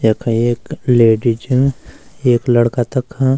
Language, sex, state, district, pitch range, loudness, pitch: Garhwali, male, Uttarakhand, Uttarkashi, 115-130 Hz, -15 LUFS, 120 Hz